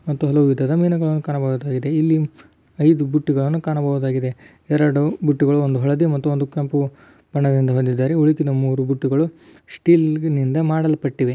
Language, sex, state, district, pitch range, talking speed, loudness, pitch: Kannada, male, Karnataka, Belgaum, 135-155 Hz, 120 wpm, -19 LUFS, 145 Hz